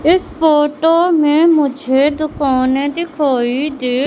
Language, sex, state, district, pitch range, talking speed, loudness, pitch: Hindi, male, Madhya Pradesh, Katni, 270-320 Hz, 105 wpm, -14 LUFS, 295 Hz